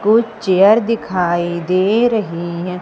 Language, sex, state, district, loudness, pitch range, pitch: Hindi, female, Madhya Pradesh, Umaria, -15 LUFS, 175-220 Hz, 190 Hz